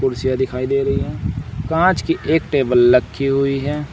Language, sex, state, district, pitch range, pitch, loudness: Hindi, male, Uttar Pradesh, Saharanpur, 125-145 Hz, 135 Hz, -18 LUFS